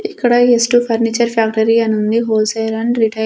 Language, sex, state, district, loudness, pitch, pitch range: Telugu, female, Andhra Pradesh, Sri Satya Sai, -14 LUFS, 230 Hz, 220-240 Hz